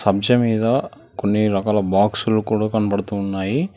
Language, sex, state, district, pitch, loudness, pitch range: Telugu, male, Telangana, Hyderabad, 105 Hz, -19 LUFS, 100-110 Hz